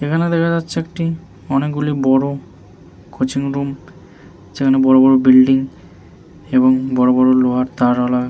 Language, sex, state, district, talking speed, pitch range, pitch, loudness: Bengali, male, West Bengal, Jhargram, 130 wpm, 130-150 Hz, 135 Hz, -15 LUFS